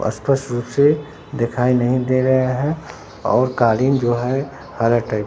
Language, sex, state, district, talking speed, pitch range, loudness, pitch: Hindi, male, Bihar, Katihar, 170 wpm, 120-135 Hz, -18 LUFS, 130 Hz